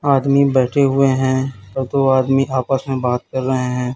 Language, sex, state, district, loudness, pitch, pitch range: Hindi, male, Chhattisgarh, Raipur, -17 LUFS, 130 Hz, 130-135 Hz